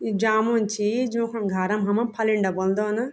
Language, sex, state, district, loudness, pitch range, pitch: Garhwali, female, Uttarakhand, Tehri Garhwal, -23 LUFS, 205-230 Hz, 215 Hz